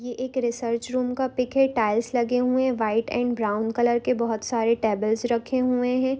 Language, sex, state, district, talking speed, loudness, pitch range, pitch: Hindi, female, Jharkhand, Jamtara, 225 wpm, -24 LUFS, 230-255 Hz, 245 Hz